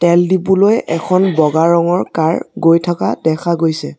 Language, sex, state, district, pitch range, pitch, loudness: Assamese, male, Assam, Sonitpur, 165-185 Hz, 170 Hz, -14 LUFS